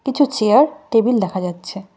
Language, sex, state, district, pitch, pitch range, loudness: Bengali, female, West Bengal, Cooch Behar, 225 Hz, 195-275 Hz, -17 LUFS